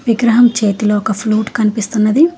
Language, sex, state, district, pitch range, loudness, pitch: Telugu, female, Telangana, Hyderabad, 215-235 Hz, -13 LUFS, 220 Hz